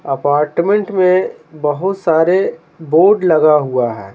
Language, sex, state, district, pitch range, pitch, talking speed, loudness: Hindi, male, Bihar, Patna, 145-185 Hz, 160 Hz, 115 wpm, -14 LUFS